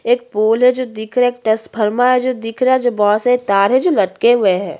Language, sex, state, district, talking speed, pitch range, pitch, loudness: Hindi, female, Chhattisgarh, Bastar, 285 wpm, 215-250 Hz, 240 Hz, -15 LUFS